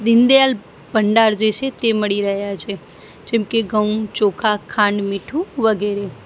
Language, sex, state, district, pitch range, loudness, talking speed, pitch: Gujarati, female, Gujarat, Gandhinagar, 205-230 Hz, -17 LUFS, 135 wpm, 215 Hz